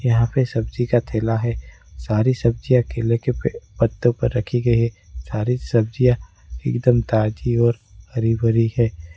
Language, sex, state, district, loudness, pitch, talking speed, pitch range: Hindi, male, Gujarat, Valsad, -20 LUFS, 115 Hz, 150 wpm, 110-120 Hz